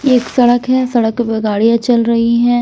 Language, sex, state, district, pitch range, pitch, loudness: Hindi, female, Punjab, Kapurthala, 230-245 Hz, 240 Hz, -13 LUFS